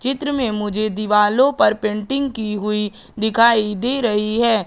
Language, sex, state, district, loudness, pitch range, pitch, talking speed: Hindi, female, Madhya Pradesh, Katni, -18 LUFS, 210-245 Hz, 220 Hz, 155 wpm